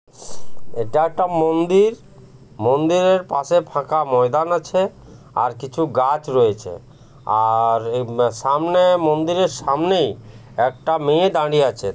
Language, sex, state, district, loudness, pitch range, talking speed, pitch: Bengali, male, West Bengal, Jhargram, -18 LUFS, 130-175 Hz, 105 wpm, 155 Hz